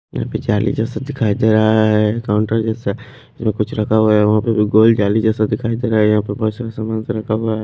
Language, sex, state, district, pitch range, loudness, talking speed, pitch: Hindi, male, Haryana, Charkhi Dadri, 105-110 Hz, -16 LUFS, 260 wpm, 110 Hz